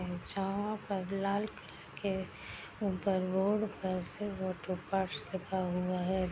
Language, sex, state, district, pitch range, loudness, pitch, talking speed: Hindi, female, Bihar, Gopalganj, 185-200 Hz, -36 LUFS, 190 Hz, 115 wpm